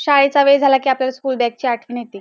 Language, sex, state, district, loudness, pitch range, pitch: Marathi, female, Maharashtra, Dhule, -16 LUFS, 240-275 Hz, 265 Hz